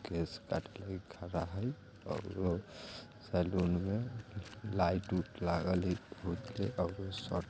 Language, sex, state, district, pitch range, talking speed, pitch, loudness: Bajjika, male, Bihar, Vaishali, 90-105 Hz, 105 wpm, 95 Hz, -38 LUFS